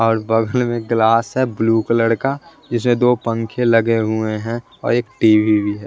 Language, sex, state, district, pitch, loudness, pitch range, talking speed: Hindi, male, Bihar, West Champaran, 115 Hz, -17 LUFS, 110-120 Hz, 205 wpm